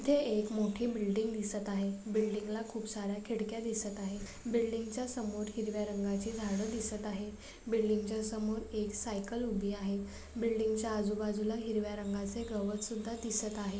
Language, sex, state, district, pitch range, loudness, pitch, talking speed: Marathi, female, Maharashtra, Pune, 205-225 Hz, -36 LUFS, 215 Hz, 145 wpm